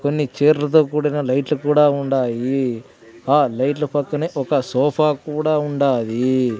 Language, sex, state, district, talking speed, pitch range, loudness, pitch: Telugu, male, Andhra Pradesh, Sri Satya Sai, 120 wpm, 130-150 Hz, -19 LUFS, 145 Hz